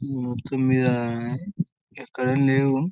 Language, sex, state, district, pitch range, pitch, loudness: Telugu, male, Telangana, Karimnagar, 125-135 Hz, 130 Hz, -24 LUFS